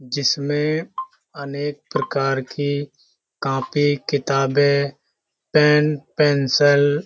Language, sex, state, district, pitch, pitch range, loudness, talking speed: Hindi, male, Uttar Pradesh, Hamirpur, 145 Hz, 140-150 Hz, -20 LUFS, 75 wpm